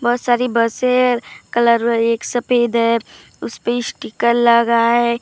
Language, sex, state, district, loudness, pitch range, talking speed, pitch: Hindi, female, Maharashtra, Gondia, -16 LUFS, 235-240 Hz, 140 wpm, 235 Hz